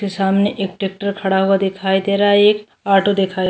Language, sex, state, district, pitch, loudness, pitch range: Hindi, female, Goa, North and South Goa, 195 Hz, -16 LUFS, 190-200 Hz